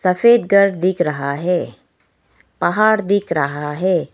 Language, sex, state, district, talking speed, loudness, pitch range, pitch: Hindi, female, Arunachal Pradesh, Lower Dibang Valley, 130 wpm, -17 LUFS, 155-200 Hz, 185 Hz